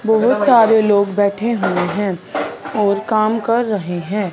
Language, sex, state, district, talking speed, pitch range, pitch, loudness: Hindi, male, Punjab, Fazilka, 150 wpm, 200-225 Hz, 210 Hz, -16 LUFS